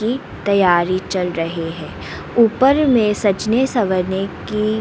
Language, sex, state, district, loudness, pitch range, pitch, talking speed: Hindi, female, Bihar, Katihar, -17 LUFS, 185-230 Hz, 200 Hz, 110 wpm